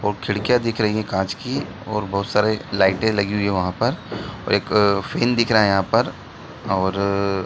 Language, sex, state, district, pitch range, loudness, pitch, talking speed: Hindi, male, Bihar, Gaya, 100-110 Hz, -21 LUFS, 105 Hz, 210 wpm